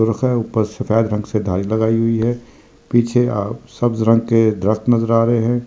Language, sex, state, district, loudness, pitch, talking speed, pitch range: Hindi, male, Delhi, New Delhi, -17 LUFS, 115 Hz, 180 wpm, 110-120 Hz